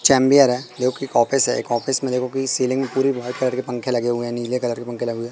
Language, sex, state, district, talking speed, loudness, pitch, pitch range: Hindi, male, Madhya Pradesh, Katni, 305 wpm, -20 LUFS, 125 Hz, 120-135 Hz